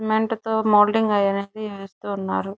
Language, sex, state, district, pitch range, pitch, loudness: Telugu, female, Andhra Pradesh, Chittoor, 195-220 Hz, 210 Hz, -21 LUFS